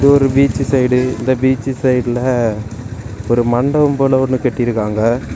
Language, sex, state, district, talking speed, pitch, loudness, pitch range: Tamil, male, Tamil Nadu, Kanyakumari, 135 wpm, 125 Hz, -15 LUFS, 120-135 Hz